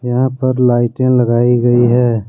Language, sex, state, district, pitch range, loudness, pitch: Hindi, male, Jharkhand, Deoghar, 120-125 Hz, -13 LUFS, 125 Hz